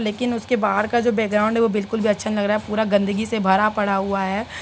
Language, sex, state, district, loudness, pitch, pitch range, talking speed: Hindi, female, Bihar, Sitamarhi, -20 LUFS, 215 Hz, 205-225 Hz, 285 wpm